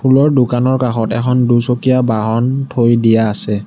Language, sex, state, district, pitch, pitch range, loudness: Assamese, male, Assam, Kamrup Metropolitan, 125 Hz, 115-130 Hz, -13 LUFS